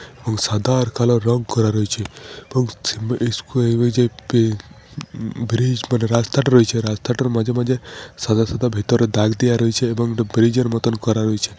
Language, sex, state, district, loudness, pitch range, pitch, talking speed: Bengali, male, Jharkhand, Jamtara, -19 LUFS, 110-125 Hz, 115 Hz, 185 wpm